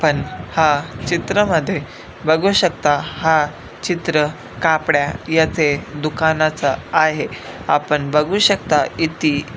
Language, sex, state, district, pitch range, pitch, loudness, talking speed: Marathi, male, Maharashtra, Pune, 145-160 Hz, 155 Hz, -18 LUFS, 100 wpm